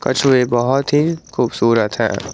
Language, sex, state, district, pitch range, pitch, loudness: Hindi, male, Jharkhand, Garhwa, 115-140 Hz, 125 Hz, -16 LUFS